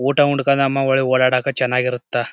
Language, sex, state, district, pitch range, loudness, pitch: Kannada, male, Karnataka, Chamarajanagar, 125-135 Hz, -17 LUFS, 135 Hz